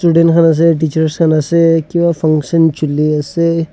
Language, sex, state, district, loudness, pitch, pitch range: Nagamese, male, Nagaland, Dimapur, -12 LUFS, 165 Hz, 155-165 Hz